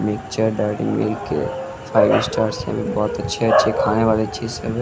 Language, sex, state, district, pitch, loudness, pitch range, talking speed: Hindi, male, Bihar, West Champaran, 110 Hz, -20 LUFS, 105-115 Hz, 185 wpm